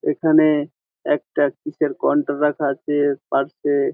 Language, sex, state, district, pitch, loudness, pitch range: Bengali, male, West Bengal, Jhargram, 145 Hz, -20 LUFS, 145-155 Hz